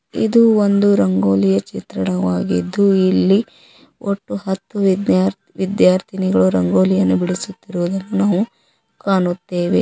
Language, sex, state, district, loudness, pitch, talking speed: Kannada, female, Karnataka, Koppal, -17 LUFS, 185 Hz, 80 wpm